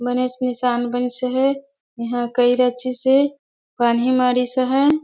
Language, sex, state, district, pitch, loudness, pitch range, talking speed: Surgujia, female, Chhattisgarh, Sarguja, 250 Hz, -19 LUFS, 245-260 Hz, 130 wpm